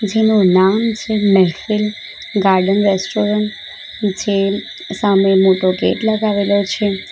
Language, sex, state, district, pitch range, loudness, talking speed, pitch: Gujarati, female, Gujarat, Valsad, 195-210 Hz, -15 LUFS, 100 wpm, 200 Hz